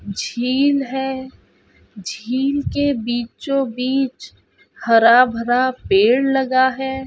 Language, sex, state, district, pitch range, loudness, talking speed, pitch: Hindi, female, Rajasthan, Nagaur, 240-270 Hz, -18 LUFS, 95 wpm, 260 Hz